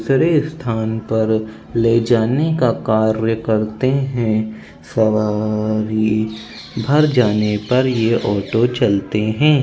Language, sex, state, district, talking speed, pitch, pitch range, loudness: Hindi, male, Uttar Pradesh, Budaun, 125 wpm, 110 Hz, 110-125 Hz, -17 LUFS